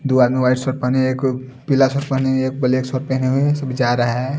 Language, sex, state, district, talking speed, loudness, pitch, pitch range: Hindi, male, Delhi, New Delhi, 245 wpm, -18 LUFS, 130 Hz, 130-135 Hz